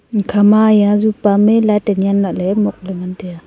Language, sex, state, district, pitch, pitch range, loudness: Wancho, female, Arunachal Pradesh, Longding, 205 Hz, 195-210 Hz, -13 LUFS